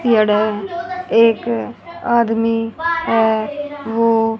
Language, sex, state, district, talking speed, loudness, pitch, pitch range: Hindi, female, Haryana, Rohtak, 55 wpm, -17 LUFS, 230 Hz, 225-290 Hz